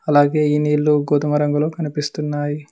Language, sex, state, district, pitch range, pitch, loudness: Telugu, male, Telangana, Mahabubabad, 145-150 Hz, 150 Hz, -18 LUFS